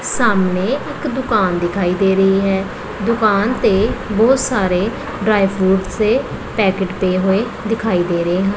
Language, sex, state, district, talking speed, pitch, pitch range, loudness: Punjabi, female, Punjab, Pathankot, 145 wpm, 195 Hz, 190-220 Hz, -16 LUFS